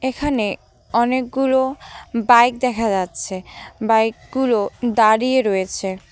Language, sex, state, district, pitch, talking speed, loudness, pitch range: Bengali, female, West Bengal, Cooch Behar, 235 Hz, 90 wpm, -18 LUFS, 200-255 Hz